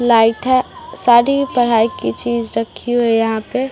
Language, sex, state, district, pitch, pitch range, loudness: Hindi, male, Bihar, Samastipur, 240 Hz, 225-255 Hz, -16 LUFS